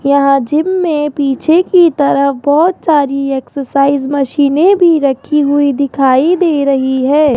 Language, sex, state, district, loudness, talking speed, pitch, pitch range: Hindi, female, Rajasthan, Jaipur, -11 LUFS, 140 wpm, 285 Hz, 275-310 Hz